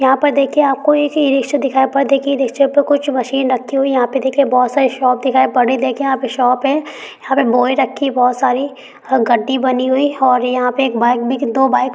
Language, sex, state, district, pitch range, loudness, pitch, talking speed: Hindi, female, Bihar, Gaya, 255-275 Hz, -14 LUFS, 265 Hz, 250 wpm